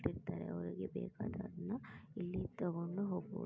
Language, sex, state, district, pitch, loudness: Kannada, female, Karnataka, Mysore, 170 Hz, -44 LUFS